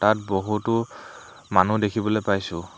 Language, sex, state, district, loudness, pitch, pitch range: Assamese, male, Assam, Hailakandi, -23 LUFS, 105 Hz, 95-110 Hz